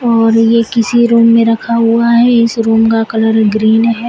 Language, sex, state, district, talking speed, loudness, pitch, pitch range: Hindi, female, Uttar Pradesh, Shamli, 205 wpm, -10 LUFS, 230 Hz, 225-235 Hz